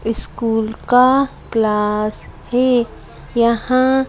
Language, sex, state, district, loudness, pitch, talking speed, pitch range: Hindi, female, Madhya Pradesh, Bhopal, -17 LUFS, 235 Hz, 90 wpm, 220-255 Hz